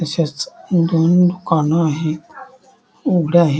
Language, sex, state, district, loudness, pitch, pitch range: Marathi, male, Maharashtra, Dhule, -17 LUFS, 170 Hz, 160-180 Hz